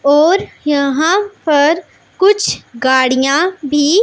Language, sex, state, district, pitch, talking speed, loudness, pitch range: Hindi, female, Punjab, Pathankot, 300 Hz, 90 wpm, -13 LUFS, 280-370 Hz